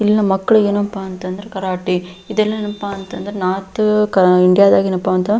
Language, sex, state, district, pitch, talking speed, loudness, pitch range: Kannada, female, Karnataka, Belgaum, 195 Hz, 155 wpm, -16 LUFS, 185-210 Hz